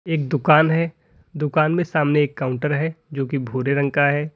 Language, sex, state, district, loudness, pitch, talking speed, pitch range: Hindi, male, Uttar Pradesh, Lalitpur, -20 LUFS, 150 Hz, 205 wpm, 140-160 Hz